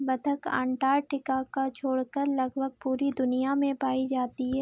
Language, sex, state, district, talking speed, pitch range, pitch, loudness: Hindi, female, Bihar, Araria, 145 wpm, 260-275 Hz, 265 Hz, -29 LUFS